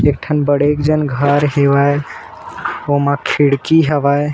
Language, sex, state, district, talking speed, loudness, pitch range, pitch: Chhattisgarhi, male, Chhattisgarh, Bilaspur, 125 wpm, -14 LUFS, 140-150 Hz, 145 Hz